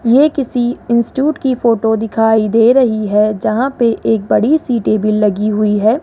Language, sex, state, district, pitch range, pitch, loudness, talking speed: Hindi, male, Rajasthan, Jaipur, 215-255 Hz, 225 Hz, -13 LUFS, 180 wpm